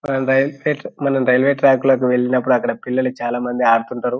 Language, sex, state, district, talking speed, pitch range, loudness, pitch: Telugu, male, Telangana, Nalgonda, 130 wpm, 125-135 Hz, -17 LUFS, 130 Hz